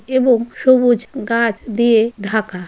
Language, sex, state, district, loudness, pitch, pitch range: Bengali, female, West Bengal, Malda, -16 LUFS, 235 Hz, 220-245 Hz